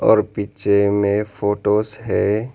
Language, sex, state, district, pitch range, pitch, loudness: Hindi, male, Arunachal Pradesh, Lower Dibang Valley, 100-105 Hz, 105 Hz, -19 LUFS